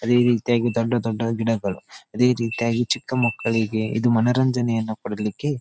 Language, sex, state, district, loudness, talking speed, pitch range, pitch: Kannada, male, Karnataka, Dharwad, -22 LUFS, 140 wpm, 110-120 Hz, 115 Hz